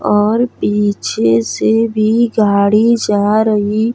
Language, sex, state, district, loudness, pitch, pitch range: Bhojpuri, female, Uttar Pradesh, Gorakhpur, -13 LUFS, 215 Hz, 205-225 Hz